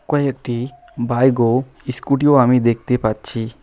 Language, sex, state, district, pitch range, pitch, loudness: Bengali, male, West Bengal, Alipurduar, 120-140 Hz, 125 Hz, -18 LUFS